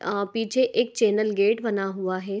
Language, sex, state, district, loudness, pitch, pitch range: Hindi, female, Bihar, Begusarai, -24 LUFS, 215 Hz, 200-225 Hz